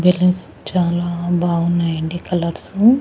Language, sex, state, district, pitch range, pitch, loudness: Telugu, female, Andhra Pradesh, Annamaya, 170-180 Hz, 175 Hz, -19 LUFS